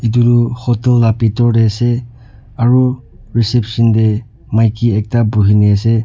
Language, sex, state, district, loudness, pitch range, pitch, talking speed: Nagamese, male, Nagaland, Dimapur, -13 LUFS, 110-120 Hz, 115 Hz, 150 wpm